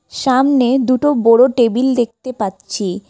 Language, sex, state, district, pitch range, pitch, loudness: Bengali, female, West Bengal, Alipurduar, 225-260 Hz, 245 Hz, -14 LUFS